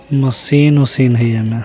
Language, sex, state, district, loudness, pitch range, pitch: Bajjika, male, Bihar, Vaishali, -13 LUFS, 115-140 Hz, 130 Hz